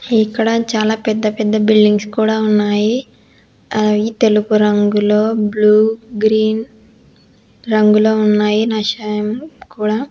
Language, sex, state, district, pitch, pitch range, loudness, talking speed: Telugu, female, Telangana, Hyderabad, 215 Hz, 210-220 Hz, -14 LUFS, 95 wpm